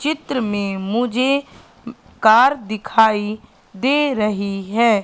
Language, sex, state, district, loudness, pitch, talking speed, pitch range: Hindi, female, Madhya Pradesh, Katni, -18 LUFS, 225 Hz, 105 wpm, 210-265 Hz